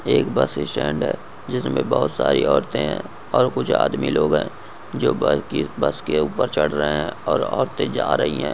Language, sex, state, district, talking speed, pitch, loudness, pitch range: Hindi, male, Goa, North and South Goa, 180 wpm, 75 Hz, -21 LUFS, 65-75 Hz